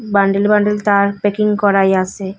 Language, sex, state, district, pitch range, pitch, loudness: Bengali, female, Assam, Hailakandi, 195-210 Hz, 200 Hz, -14 LUFS